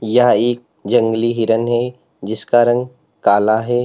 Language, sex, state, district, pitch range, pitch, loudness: Hindi, male, Uttar Pradesh, Lalitpur, 110-120 Hz, 120 Hz, -16 LUFS